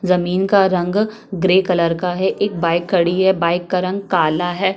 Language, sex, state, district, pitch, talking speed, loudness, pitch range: Hindi, female, Chhattisgarh, Kabirdham, 185 Hz, 190 wpm, -17 LUFS, 175-190 Hz